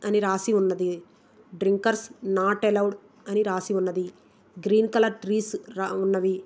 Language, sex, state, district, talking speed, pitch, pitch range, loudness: Telugu, female, Andhra Pradesh, Visakhapatnam, 120 wpm, 200 Hz, 190-215 Hz, -25 LUFS